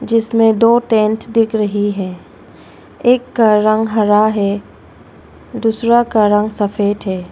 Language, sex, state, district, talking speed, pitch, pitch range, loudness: Hindi, female, Arunachal Pradesh, Longding, 130 wpm, 215 Hz, 205-230 Hz, -14 LUFS